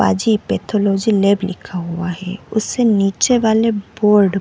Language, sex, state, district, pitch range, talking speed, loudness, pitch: Hindi, female, Chhattisgarh, Bilaspur, 195-220 Hz, 150 wpm, -16 LUFS, 205 Hz